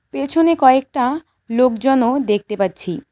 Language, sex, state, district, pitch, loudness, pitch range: Bengali, female, West Bengal, Cooch Behar, 255 Hz, -17 LUFS, 210-270 Hz